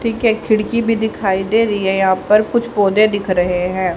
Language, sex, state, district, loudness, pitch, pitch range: Hindi, female, Haryana, Rohtak, -16 LUFS, 210 Hz, 190-225 Hz